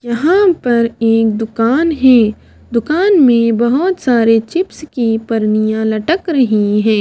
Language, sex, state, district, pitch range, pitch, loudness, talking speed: Hindi, female, Himachal Pradesh, Shimla, 225-305 Hz, 235 Hz, -13 LUFS, 130 wpm